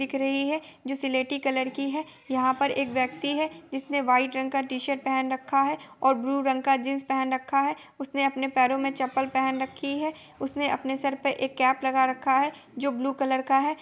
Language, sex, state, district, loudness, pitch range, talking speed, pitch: Hindi, female, Bihar, Gopalganj, -27 LUFS, 265-280 Hz, 215 wpm, 270 Hz